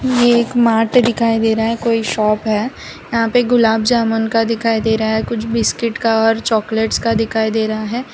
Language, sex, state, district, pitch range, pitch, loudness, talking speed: Hindi, female, Gujarat, Valsad, 220-235 Hz, 225 Hz, -15 LUFS, 215 wpm